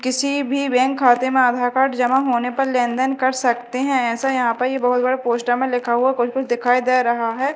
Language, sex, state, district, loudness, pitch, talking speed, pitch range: Hindi, female, Madhya Pradesh, Dhar, -18 LUFS, 255 Hz, 240 wpm, 245-265 Hz